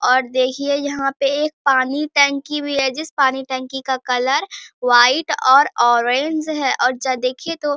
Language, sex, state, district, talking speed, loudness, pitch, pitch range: Hindi, female, Bihar, Bhagalpur, 170 wpm, -17 LUFS, 270 Hz, 260-290 Hz